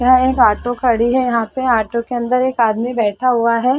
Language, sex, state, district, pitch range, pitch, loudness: Hindi, female, Chhattisgarh, Bilaspur, 230-255 Hz, 245 Hz, -16 LUFS